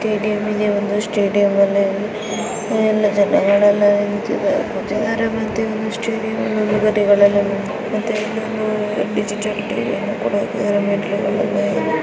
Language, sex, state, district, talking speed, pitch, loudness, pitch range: Kannada, female, Karnataka, Dakshina Kannada, 60 wpm, 210 Hz, -18 LUFS, 205-220 Hz